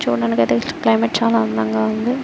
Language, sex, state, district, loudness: Telugu, female, Andhra Pradesh, Srikakulam, -18 LUFS